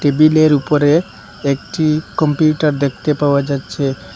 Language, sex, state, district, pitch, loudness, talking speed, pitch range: Bengali, male, Assam, Hailakandi, 145 Hz, -15 LUFS, 100 wpm, 140-155 Hz